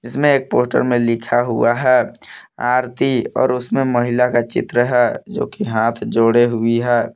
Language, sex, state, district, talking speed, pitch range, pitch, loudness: Hindi, male, Jharkhand, Palamu, 160 wpm, 120-125 Hz, 120 Hz, -17 LUFS